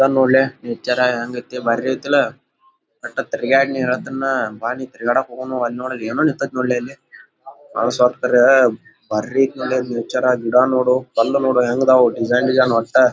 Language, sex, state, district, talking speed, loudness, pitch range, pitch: Kannada, male, Karnataka, Gulbarga, 155 wpm, -18 LUFS, 120-135 Hz, 125 Hz